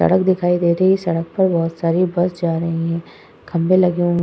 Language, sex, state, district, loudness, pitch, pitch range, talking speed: Hindi, female, Uttar Pradesh, Hamirpur, -18 LUFS, 175 Hz, 165-185 Hz, 240 wpm